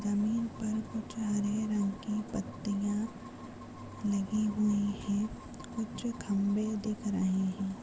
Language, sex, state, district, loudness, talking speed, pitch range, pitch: Hindi, female, Chhattisgarh, Rajnandgaon, -33 LUFS, 115 wpm, 200-215 Hz, 210 Hz